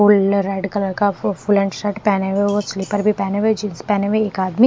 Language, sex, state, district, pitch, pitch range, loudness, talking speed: Hindi, female, Haryana, Rohtak, 205 Hz, 195-210 Hz, -19 LUFS, 270 wpm